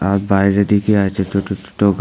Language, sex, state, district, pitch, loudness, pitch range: Bengali, male, Tripura, West Tripura, 100 Hz, -16 LUFS, 95-100 Hz